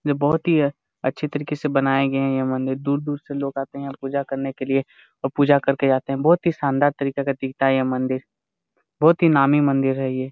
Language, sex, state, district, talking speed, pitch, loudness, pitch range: Hindi, male, Jharkhand, Jamtara, 245 wpm, 140 Hz, -21 LUFS, 135-145 Hz